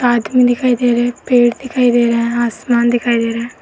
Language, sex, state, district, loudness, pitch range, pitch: Hindi, female, Uttar Pradesh, Varanasi, -14 LUFS, 235-245 Hz, 240 Hz